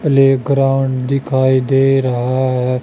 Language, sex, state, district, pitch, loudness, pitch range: Hindi, male, Haryana, Jhajjar, 135 Hz, -14 LUFS, 130-135 Hz